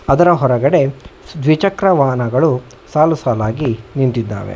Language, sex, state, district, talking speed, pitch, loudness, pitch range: Kannada, male, Karnataka, Bangalore, 80 wpm, 135 Hz, -15 LUFS, 125-160 Hz